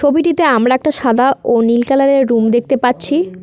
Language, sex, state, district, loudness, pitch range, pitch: Bengali, female, West Bengal, Cooch Behar, -13 LUFS, 235-285 Hz, 260 Hz